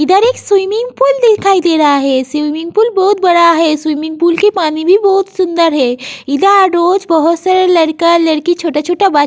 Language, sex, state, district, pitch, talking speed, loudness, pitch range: Hindi, female, Uttar Pradesh, Jyotiba Phule Nagar, 345 Hz, 200 wpm, -11 LUFS, 315-390 Hz